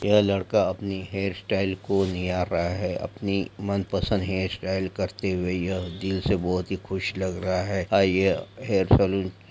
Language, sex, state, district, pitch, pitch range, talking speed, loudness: Hindi, male, Jharkhand, Sahebganj, 95 Hz, 90-100 Hz, 170 wpm, -26 LUFS